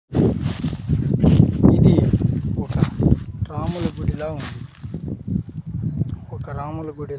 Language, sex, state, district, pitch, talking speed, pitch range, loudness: Telugu, male, Andhra Pradesh, Sri Satya Sai, 140 Hz, 65 wpm, 125-150 Hz, -21 LUFS